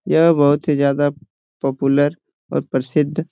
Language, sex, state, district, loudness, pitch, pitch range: Hindi, male, Jharkhand, Jamtara, -18 LUFS, 145 Hz, 140-150 Hz